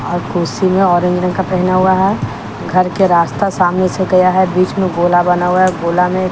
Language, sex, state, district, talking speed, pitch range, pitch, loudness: Hindi, female, Bihar, Patna, 235 wpm, 175-185 Hz, 185 Hz, -13 LUFS